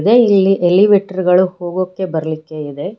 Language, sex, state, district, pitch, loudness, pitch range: Kannada, female, Karnataka, Bangalore, 185 Hz, -14 LUFS, 175-195 Hz